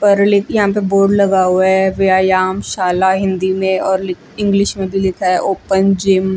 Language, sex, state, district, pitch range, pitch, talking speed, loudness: Hindi, female, Chandigarh, Chandigarh, 190-200 Hz, 190 Hz, 195 wpm, -14 LUFS